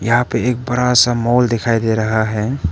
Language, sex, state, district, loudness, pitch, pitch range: Hindi, male, Arunachal Pradesh, Papum Pare, -16 LUFS, 120 Hz, 115-125 Hz